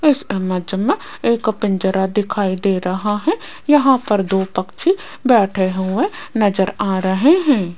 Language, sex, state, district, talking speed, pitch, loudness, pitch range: Hindi, female, Rajasthan, Jaipur, 145 wpm, 205 Hz, -17 LUFS, 190-265 Hz